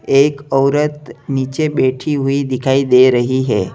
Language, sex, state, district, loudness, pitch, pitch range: Hindi, male, Uttar Pradesh, Lalitpur, -15 LUFS, 135 Hz, 130-145 Hz